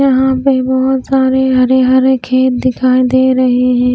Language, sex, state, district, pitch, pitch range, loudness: Hindi, female, Haryana, Rohtak, 260 Hz, 255-260 Hz, -11 LUFS